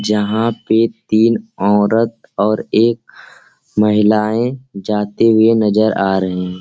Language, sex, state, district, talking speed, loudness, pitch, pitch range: Hindi, male, Bihar, Gaya, 110 wpm, -15 LUFS, 110 Hz, 105-115 Hz